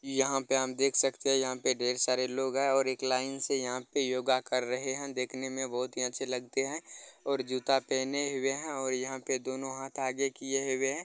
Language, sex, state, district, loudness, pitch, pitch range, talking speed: Maithili, male, Bihar, Begusarai, -31 LUFS, 130 Hz, 130-135 Hz, 235 wpm